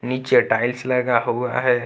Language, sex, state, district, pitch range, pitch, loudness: Hindi, male, Jharkhand, Ranchi, 120-125 Hz, 125 Hz, -20 LUFS